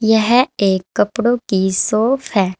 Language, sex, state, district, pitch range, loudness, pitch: Hindi, female, Uttar Pradesh, Saharanpur, 190-240 Hz, -16 LUFS, 220 Hz